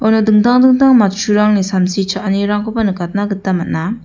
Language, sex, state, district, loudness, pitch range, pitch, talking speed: Garo, female, Meghalaya, West Garo Hills, -13 LUFS, 195-220 Hz, 205 Hz, 135 wpm